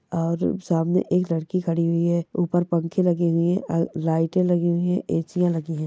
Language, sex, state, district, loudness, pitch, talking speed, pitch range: Hindi, male, Chhattisgarh, Bastar, -23 LUFS, 170 Hz, 205 wpm, 165-180 Hz